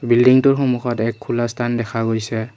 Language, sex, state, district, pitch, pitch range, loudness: Assamese, male, Assam, Kamrup Metropolitan, 120 Hz, 115-125 Hz, -18 LUFS